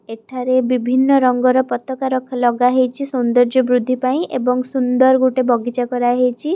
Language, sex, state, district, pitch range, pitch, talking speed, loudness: Odia, female, Odisha, Khordha, 245-260 Hz, 255 Hz, 155 wpm, -16 LUFS